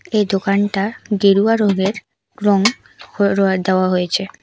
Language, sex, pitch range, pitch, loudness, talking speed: Bengali, female, 190-210 Hz, 200 Hz, -17 LUFS, 110 wpm